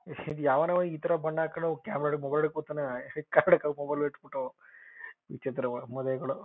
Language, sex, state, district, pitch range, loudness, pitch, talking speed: Kannada, male, Karnataka, Chamarajanagar, 140-165 Hz, -30 LUFS, 150 Hz, 65 wpm